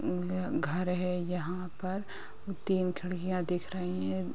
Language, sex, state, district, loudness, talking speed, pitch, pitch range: Hindi, female, Uttar Pradesh, Ghazipur, -34 LUFS, 125 wpm, 180 Hz, 175-185 Hz